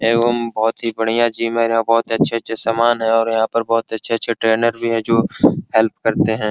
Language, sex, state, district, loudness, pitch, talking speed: Hindi, male, Bihar, Araria, -17 LUFS, 115 Hz, 175 wpm